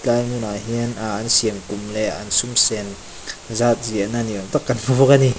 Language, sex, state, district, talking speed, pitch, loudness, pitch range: Mizo, male, Mizoram, Aizawl, 190 wpm, 115 Hz, -19 LUFS, 105-120 Hz